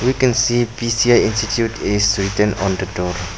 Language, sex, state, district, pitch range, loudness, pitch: English, male, Arunachal Pradesh, Papum Pare, 100-120 Hz, -17 LUFS, 110 Hz